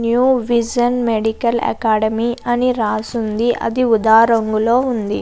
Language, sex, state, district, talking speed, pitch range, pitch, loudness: Telugu, female, Andhra Pradesh, Krishna, 115 wpm, 220-240 Hz, 235 Hz, -16 LUFS